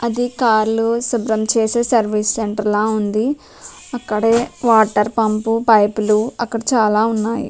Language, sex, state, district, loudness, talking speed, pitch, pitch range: Telugu, female, Telangana, Nalgonda, -16 LUFS, 130 wpm, 225 Hz, 215-235 Hz